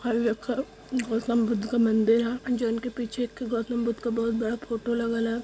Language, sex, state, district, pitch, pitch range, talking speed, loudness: Awadhi, female, Uttar Pradesh, Varanasi, 235 Hz, 230-240 Hz, 200 wpm, -27 LUFS